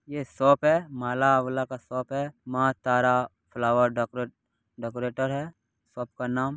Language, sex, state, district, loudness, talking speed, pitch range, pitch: Hindi, male, Bihar, Purnia, -26 LUFS, 155 wpm, 125-135 Hz, 130 Hz